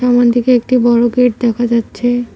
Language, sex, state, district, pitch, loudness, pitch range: Bengali, female, West Bengal, Cooch Behar, 245 Hz, -13 LUFS, 240-245 Hz